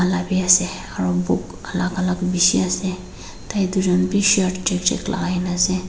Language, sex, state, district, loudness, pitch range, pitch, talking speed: Nagamese, female, Nagaland, Dimapur, -19 LUFS, 180-185 Hz, 185 Hz, 165 wpm